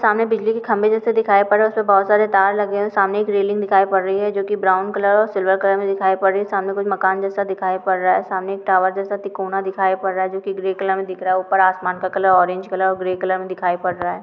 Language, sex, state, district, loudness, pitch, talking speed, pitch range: Hindi, female, Chhattisgarh, Sukma, -18 LUFS, 195 Hz, 300 wpm, 190-200 Hz